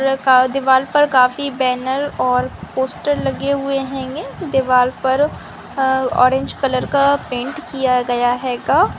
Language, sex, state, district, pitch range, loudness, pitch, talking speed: Hindi, female, Bihar, Sitamarhi, 255-280 Hz, -17 LUFS, 265 Hz, 125 wpm